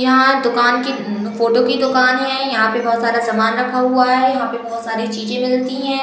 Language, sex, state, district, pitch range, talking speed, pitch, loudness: Hindi, female, Uttar Pradesh, Budaun, 230-255 Hz, 220 wpm, 245 Hz, -16 LUFS